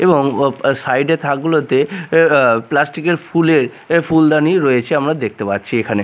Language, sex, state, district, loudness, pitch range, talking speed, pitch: Bengali, male, Odisha, Nuapada, -15 LUFS, 135-165 Hz, 170 wpm, 155 Hz